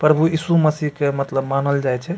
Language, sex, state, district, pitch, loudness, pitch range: Maithili, male, Bihar, Supaul, 150 Hz, -19 LUFS, 140-155 Hz